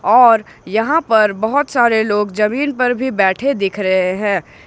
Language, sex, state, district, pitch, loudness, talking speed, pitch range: Hindi, male, Jharkhand, Ranchi, 220 Hz, -15 LUFS, 165 wpm, 200-250 Hz